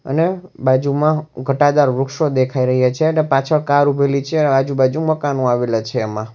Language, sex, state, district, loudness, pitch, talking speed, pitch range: Gujarati, male, Gujarat, Valsad, -17 LUFS, 140 Hz, 170 wpm, 130-155 Hz